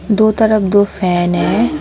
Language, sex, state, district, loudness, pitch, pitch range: Hindi, female, West Bengal, Alipurduar, -13 LUFS, 210 Hz, 190-220 Hz